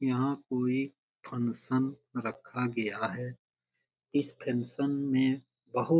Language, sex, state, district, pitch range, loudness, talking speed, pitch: Hindi, male, Bihar, Jamui, 125-135 Hz, -33 LUFS, 100 wpm, 130 Hz